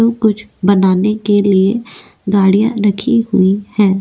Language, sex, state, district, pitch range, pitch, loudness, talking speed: Hindi, female, Goa, North and South Goa, 195-215 Hz, 205 Hz, -13 LUFS, 135 wpm